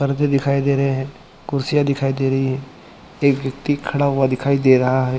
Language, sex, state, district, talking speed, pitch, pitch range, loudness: Hindi, male, Chhattisgarh, Bilaspur, 210 wpm, 135 Hz, 135-140 Hz, -19 LUFS